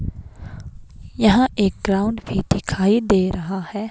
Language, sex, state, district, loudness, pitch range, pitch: Hindi, female, Himachal Pradesh, Shimla, -19 LUFS, 190-215 Hz, 200 Hz